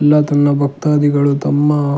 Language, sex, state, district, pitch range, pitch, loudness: Kannada, male, Karnataka, Shimoga, 145-150 Hz, 145 Hz, -14 LUFS